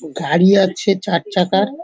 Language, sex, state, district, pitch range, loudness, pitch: Bengali, female, West Bengal, North 24 Parganas, 170-200 Hz, -16 LUFS, 185 Hz